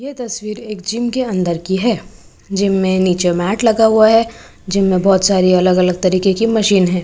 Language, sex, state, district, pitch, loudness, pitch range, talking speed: Hindi, female, Maharashtra, Gondia, 195 Hz, -15 LUFS, 185-225 Hz, 205 wpm